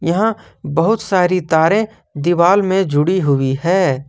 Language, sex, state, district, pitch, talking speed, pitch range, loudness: Hindi, male, Jharkhand, Ranchi, 175 Hz, 130 wpm, 155-195 Hz, -15 LUFS